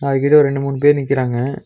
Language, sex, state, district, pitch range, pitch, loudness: Tamil, male, Tamil Nadu, Nilgiris, 135-140 Hz, 140 Hz, -15 LUFS